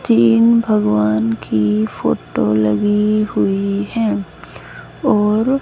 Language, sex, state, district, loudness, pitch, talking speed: Hindi, female, Haryana, Charkhi Dadri, -16 LUFS, 115 Hz, 85 wpm